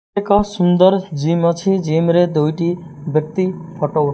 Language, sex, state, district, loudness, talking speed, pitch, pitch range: Odia, male, Odisha, Malkangiri, -17 LUFS, 160 wpm, 170 Hz, 155-185 Hz